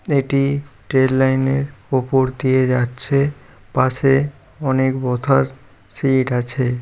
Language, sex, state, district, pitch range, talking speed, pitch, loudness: Bengali, male, West Bengal, Paschim Medinipur, 130-135 Hz, 95 wpm, 130 Hz, -18 LUFS